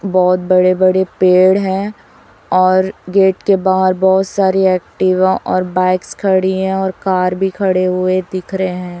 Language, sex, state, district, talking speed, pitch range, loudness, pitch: Hindi, female, Chhattisgarh, Raipur, 160 wpm, 185-190 Hz, -14 LUFS, 185 Hz